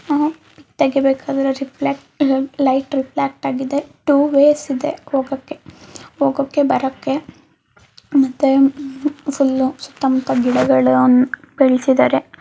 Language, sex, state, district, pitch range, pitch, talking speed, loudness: Kannada, female, Karnataka, Mysore, 265-285 Hz, 275 Hz, 70 wpm, -17 LUFS